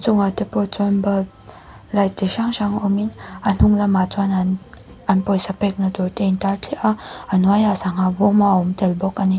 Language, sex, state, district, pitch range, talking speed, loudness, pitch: Mizo, female, Mizoram, Aizawl, 190-205 Hz, 200 wpm, -19 LUFS, 195 Hz